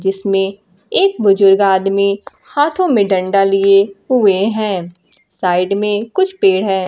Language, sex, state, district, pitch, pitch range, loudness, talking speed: Hindi, female, Bihar, Kaimur, 195 Hz, 195-210 Hz, -14 LUFS, 130 wpm